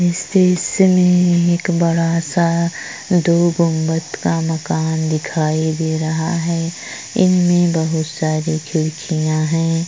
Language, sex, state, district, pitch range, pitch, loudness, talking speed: Hindi, female, Chhattisgarh, Korba, 160-175 Hz, 165 Hz, -17 LUFS, 115 wpm